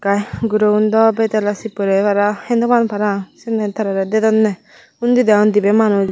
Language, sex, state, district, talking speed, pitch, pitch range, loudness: Chakma, female, Tripura, Unakoti, 165 wpm, 210 Hz, 205-225 Hz, -16 LUFS